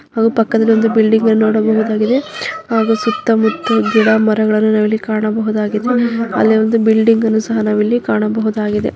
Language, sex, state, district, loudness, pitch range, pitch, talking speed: Kannada, female, Karnataka, Dharwad, -14 LUFS, 215-225 Hz, 220 Hz, 135 wpm